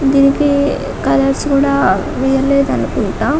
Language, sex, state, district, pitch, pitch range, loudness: Telugu, female, Telangana, Karimnagar, 275 Hz, 275-280 Hz, -14 LUFS